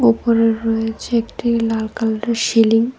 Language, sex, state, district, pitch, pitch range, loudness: Bengali, female, Tripura, West Tripura, 225 Hz, 225-235 Hz, -17 LUFS